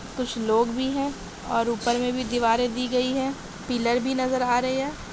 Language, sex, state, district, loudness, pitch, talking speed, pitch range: Hindi, female, Chhattisgarh, Raigarh, -25 LUFS, 245 Hz, 210 wpm, 235-260 Hz